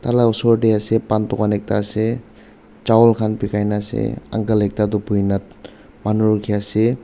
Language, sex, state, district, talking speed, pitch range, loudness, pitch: Nagamese, male, Nagaland, Dimapur, 160 wpm, 105-115 Hz, -18 LUFS, 110 Hz